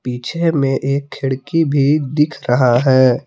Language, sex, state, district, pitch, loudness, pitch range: Hindi, male, Jharkhand, Palamu, 135 Hz, -16 LUFS, 130-150 Hz